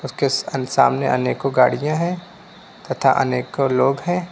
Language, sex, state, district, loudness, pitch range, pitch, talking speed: Hindi, male, Uttar Pradesh, Lucknow, -19 LUFS, 130-175 Hz, 135 Hz, 140 wpm